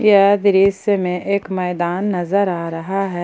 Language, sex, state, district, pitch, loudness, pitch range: Hindi, female, Jharkhand, Palamu, 195 Hz, -17 LUFS, 180-200 Hz